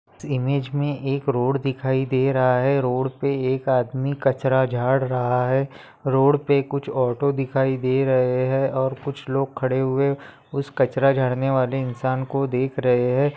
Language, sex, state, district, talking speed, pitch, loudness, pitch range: Bhojpuri, male, Bihar, Saran, 165 wpm, 135 Hz, -22 LUFS, 130-135 Hz